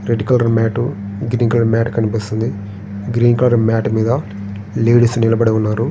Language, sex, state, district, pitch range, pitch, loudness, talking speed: Telugu, male, Andhra Pradesh, Srikakulam, 110-120 Hz, 115 Hz, -16 LUFS, 60 wpm